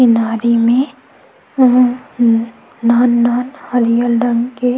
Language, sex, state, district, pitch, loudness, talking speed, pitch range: Chhattisgarhi, female, Chhattisgarh, Sukma, 240 Hz, -14 LUFS, 100 wpm, 235-250 Hz